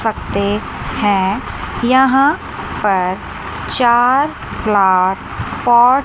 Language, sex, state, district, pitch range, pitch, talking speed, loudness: Hindi, female, Chandigarh, Chandigarh, 195-260 Hz, 225 Hz, 80 wpm, -15 LUFS